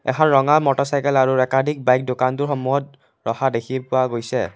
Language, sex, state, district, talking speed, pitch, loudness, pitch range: Assamese, male, Assam, Kamrup Metropolitan, 155 wpm, 130 Hz, -19 LUFS, 130-140 Hz